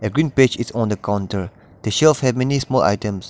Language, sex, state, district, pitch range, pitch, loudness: English, male, Nagaland, Dimapur, 105-130 Hz, 115 Hz, -19 LUFS